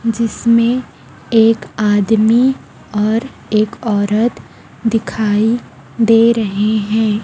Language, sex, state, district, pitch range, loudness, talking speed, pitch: Hindi, female, Chhattisgarh, Raipur, 210-230 Hz, -15 LUFS, 85 wpm, 225 Hz